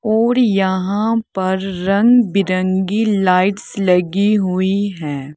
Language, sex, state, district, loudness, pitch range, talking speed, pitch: Hindi, female, Uttar Pradesh, Saharanpur, -16 LUFS, 185-215 Hz, 100 wpm, 195 Hz